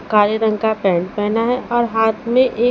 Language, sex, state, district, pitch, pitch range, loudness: Hindi, female, Chhattisgarh, Raipur, 220 Hz, 210-240 Hz, -17 LUFS